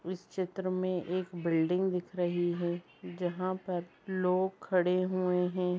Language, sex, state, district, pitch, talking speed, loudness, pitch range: Hindi, female, Bihar, Vaishali, 180 Hz, 145 wpm, -32 LUFS, 175-185 Hz